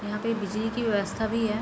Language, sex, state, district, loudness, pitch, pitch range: Hindi, female, Bihar, East Champaran, -28 LUFS, 220 Hz, 210-225 Hz